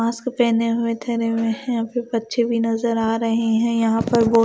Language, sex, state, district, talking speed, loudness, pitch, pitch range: Hindi, female, Maharashtra, Gondia, 215 wpm, -20 LUFS, 230 Hz, 225-235 Hz